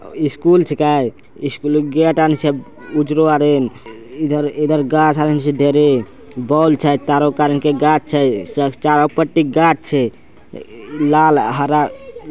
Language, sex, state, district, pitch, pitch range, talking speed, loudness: Angika, male, Bihar, Bhagalpur, 150 Hz, 145-155 Hz, 115 wpm, -15 LUFS